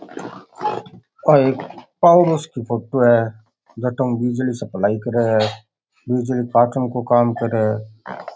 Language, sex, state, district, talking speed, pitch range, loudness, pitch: Rajasthani, male, Rajasthan, Churu, 135 wpm, 115-130 Hz, -18 LUFS, 120 Hz